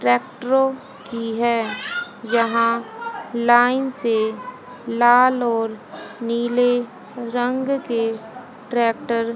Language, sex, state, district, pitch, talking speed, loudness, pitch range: Hindi, female, Haryana, Jhajjar, 240 Hz, 85 wpm, -20 LUFS, 230-255 Hz